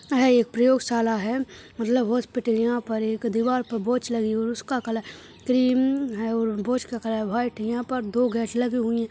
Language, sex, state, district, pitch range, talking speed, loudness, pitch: Hindi, female, Goa, North and South Goa, 225-250 Hz, 215 wpm, -24 LUFS, 235 Hz